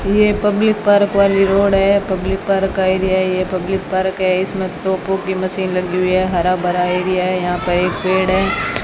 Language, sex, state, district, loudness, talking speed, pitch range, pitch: Hindi, female, Rajasthan, Bikaner, -16 LUFS, 205 wpm, 185-195 Hz, 190 Hz